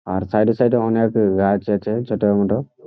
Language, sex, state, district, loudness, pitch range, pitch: Bengali, male, West Bengal, Jhargram, -18 LUFS, 100-115 Hz, 105 Hz